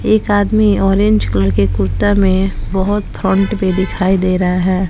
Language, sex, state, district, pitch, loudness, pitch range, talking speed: Hindi, female, Bihar, West Champaran, 190 Hz, -14 LUFS, 180-205 Hz, 170 wpm